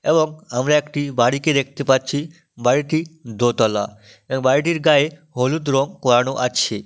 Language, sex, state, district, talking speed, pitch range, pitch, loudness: Bengali, male, West Bengal, Malda, 130 wpm, 125-155 Hz, 135 Hz, -19 LUFS